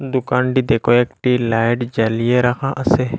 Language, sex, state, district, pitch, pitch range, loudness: Bengali, male, Assam, Hailakandi, 125 Hz, 120-130 Hz, -17 LUFS